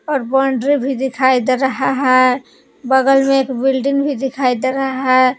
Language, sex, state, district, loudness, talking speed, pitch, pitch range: Hindi, female, Jharkhand, Palamu, -15 LUFS, 180 wpm, 265 Hz, 255-270 Hz